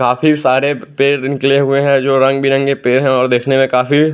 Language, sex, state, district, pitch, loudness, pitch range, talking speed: Hindi, male, Chandigarh, Chandigarh, 135 Hz, -13 LUFS, 130-140 Hz, 215 wpm